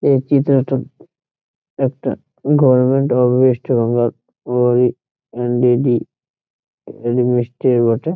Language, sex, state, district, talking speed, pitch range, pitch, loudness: Bengali, male, West Bengal, Jhargram, 60 wpm, 120-135 Hz, 125 Hz, -16 LUFS